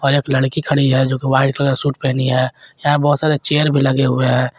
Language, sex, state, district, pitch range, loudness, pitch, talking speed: Hindi, male, Jharkhand, Garhwa, 130-145 Hz, -16 LUFS, 135 Hz, 260 wpm